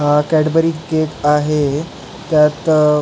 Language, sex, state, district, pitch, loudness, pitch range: Marathi, male, Maharashtra, Pune, 150 Hz, -15 LUFS, 150-160 Hz